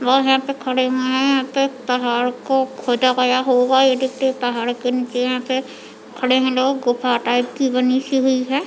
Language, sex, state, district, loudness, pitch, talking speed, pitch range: Hindi, female, Chhattisgarh, Bilaspur, -18 LUFS, 255 Hz, 210 wpm, 250-265 Hz